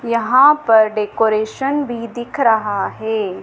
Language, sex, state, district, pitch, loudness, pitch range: Hindi, female, Madhya Pradesh, Dhar, 225 Hz, -16 LUFS, 215-240 Hz